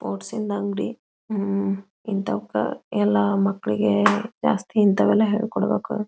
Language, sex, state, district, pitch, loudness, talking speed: Kannada, female, Karnataka, Belgaum, 200 Hz, -23 LUFS, 100 wpm